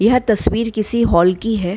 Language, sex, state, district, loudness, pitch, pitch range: Hindi, female, Bihar, Gaya, -15 LUFS, 220 Hz, 195-230 Hz